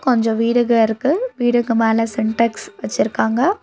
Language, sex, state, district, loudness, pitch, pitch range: Tamil, female, Tamil Nadu, Nilgiris, -17 LUFS, 230 Hz, 225-255 Hz